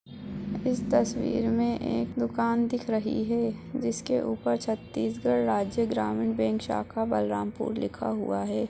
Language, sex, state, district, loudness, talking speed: Hindi, female, Chhattisgarh, Balrampur, -28 LUFS, 130 wpm